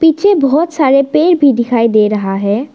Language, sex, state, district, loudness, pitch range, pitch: Hindi, female, Arunachal Pradesh, Lower Dibang Valley, -11 LUFS, 225-320 Hz, 275 Hz